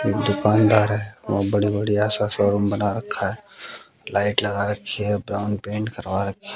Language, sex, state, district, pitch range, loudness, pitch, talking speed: Hindi, male, Bihar, West Champaran, 100-105 Hz, -22 LUFS, 105 Hz, 185 wpm